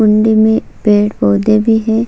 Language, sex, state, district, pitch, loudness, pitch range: Hindi, female, Chhattisgarh, Sukma, 215 Hz, -12 LUFS, 210-220 Hz